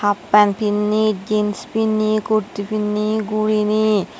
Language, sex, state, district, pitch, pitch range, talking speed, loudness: Chakma, female, Tripura, West Tripura, 215 Hz, 210-215 Hz, 115 wpm, -18 LUFS